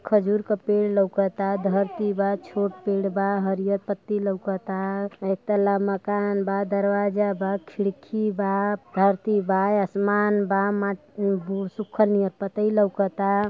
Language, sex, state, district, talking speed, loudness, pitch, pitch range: Bhojpuri, female, Uttar Pradesh, Ghazipur, 135 wpm, -24 LUFS, 200 Hz, 195-205 Hz